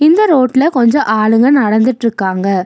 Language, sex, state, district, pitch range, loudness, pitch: Tamil, female, Tamil Nadu, Nilgiris, 215-280 Hz, -11 LUFS, 240 Hz